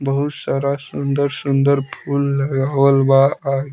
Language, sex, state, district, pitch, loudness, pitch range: Bhojpuri, male, Bihar, Muzaffarpur, 140 Hz, -17 LUFS, 135-140 Hz